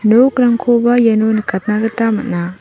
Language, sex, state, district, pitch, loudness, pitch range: Garo, female, Meghalaya, West Garo Hills, 225 Hz, -14 LUFS, 215-240 Hz